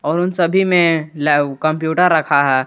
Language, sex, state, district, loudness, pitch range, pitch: Hindi, male, Jharkhand, Garhwa, -15 LUFS, 145-175 Hz, 160 Hz